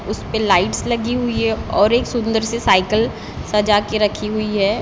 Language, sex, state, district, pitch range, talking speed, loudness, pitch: Hindi, female, Maharashtra, Gondia, 210-235 Hz, 185 wpm, -18 LUFS, 220 Hz